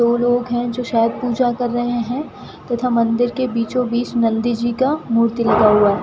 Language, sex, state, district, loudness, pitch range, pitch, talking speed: Hindi, female, Rajasthan, Bikaner, -18 LUFS, 230-245 Hz, 240 Hz, 210 wpm